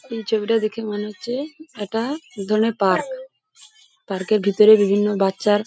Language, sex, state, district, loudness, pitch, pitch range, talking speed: Bengali, female, West Bengal, Paschim Medinipur, -20 LUFS, 220 Hz, 205-275 Hz, 170 wpm